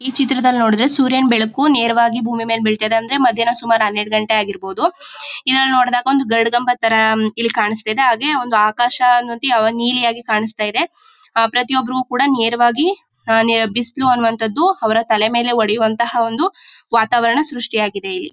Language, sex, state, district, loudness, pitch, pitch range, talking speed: Kannada, female, Karnataka, Mysore, -16 LUFS, 235 Hz, 225-260 Hz, 135 wpm